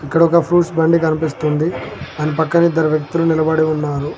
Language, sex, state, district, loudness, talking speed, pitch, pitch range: Telugu, male, Telangana, Mahabubabad, -16 LUFS, 155 wpm, 160 Hz, 155-165 Hz